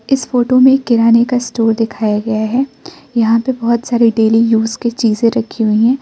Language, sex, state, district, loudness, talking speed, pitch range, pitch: Hindi, female, Arunachal Pradesh, Lower Dibang Valley, -13 LUFS, 200 wpm, 225-245 Hz, 230 Hz